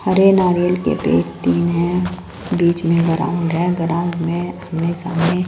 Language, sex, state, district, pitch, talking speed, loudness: Hindi, female, Punjab, Fazilka, 170 Hz, 155 wpm, -18 LUFS